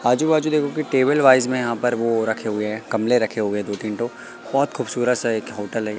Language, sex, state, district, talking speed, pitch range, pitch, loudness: Hindi, male, Madhya Pradesh, Katni, 250 wpm, 110-130 Hz, 120 Hz, -21 LUFS